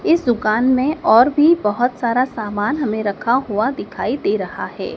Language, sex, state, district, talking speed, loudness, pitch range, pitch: Hindi, male, Madhya Pradesh, Dhar, 180 wpm, -17 LUFS, 215-275 Hz, 245 Hz